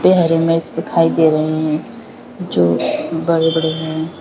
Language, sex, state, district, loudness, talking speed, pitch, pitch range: Hindi, female, Uttar Pradesh, Lalitpur, -16 LUFS, 155 wpm, 160 Hz, 155-165 Hz